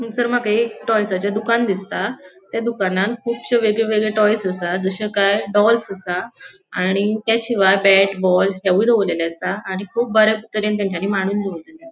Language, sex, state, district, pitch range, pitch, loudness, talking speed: Konkani, female, Goa, North and South Goa, 190-225 Hz, 205 Hz, -18 LUFS, 165 wpm